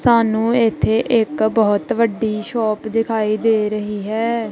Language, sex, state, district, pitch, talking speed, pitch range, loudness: Punjabi, female, Punjab, Kapurthala, 220 Hz, 135 wpm, 215-230 Hz, -18 LUFS